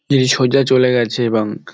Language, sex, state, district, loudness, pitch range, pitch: Bengali, male, West Bengal, Dakshin Dinajpur, -15 LUFS, 120-130 Hz, 125 Hz